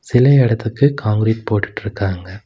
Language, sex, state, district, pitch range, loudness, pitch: Tamil, male, Tamil Nadu, Nilgiris, 105-125 Hz, -16 LUFS, 110 Hz